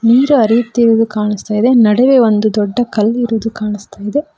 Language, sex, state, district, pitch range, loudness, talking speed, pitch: Kannada, female, Karnataka, Koppal, 210-245 Hz, -13 LUFS, 150 wpm, 225 Hz